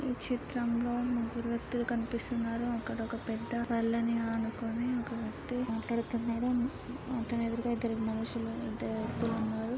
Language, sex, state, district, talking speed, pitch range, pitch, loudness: Telugu, female, Andhra Pradesh, Srikakulam, 125 wpm, 230-240 Hz, 235 Hz, -34 LUFS